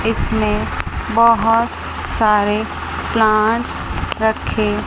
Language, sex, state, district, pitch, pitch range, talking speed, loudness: Hindi, male, Chandigarh, Chandigarh, 220 Hz, 210-225 Hz, 60 wpm, -17 LUFS